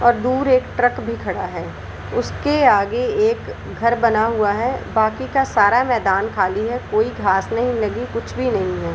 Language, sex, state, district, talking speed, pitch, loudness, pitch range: Hindi, female, Bihar, Samastipur, 185 wpm, 240 Hz, -19 LUFS, 215-260 Hz